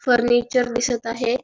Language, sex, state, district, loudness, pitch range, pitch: Marathi, female, Maharashtra, Pune, -20 LUFS, 240-245 Hz, 240 Hz